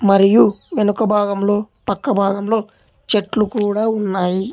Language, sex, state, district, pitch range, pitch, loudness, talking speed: Telugu, male, Telangana, Hyderabad, 200-215 Hz, 205 Hz, -17 LUFS, 105 wpm